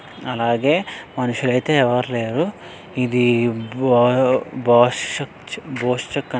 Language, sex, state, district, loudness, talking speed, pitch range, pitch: Telugu, male, Andhra Pradesh, Srikakulam, -19 LUFS, 95 wpm, 120-130 Hz, 125 Hz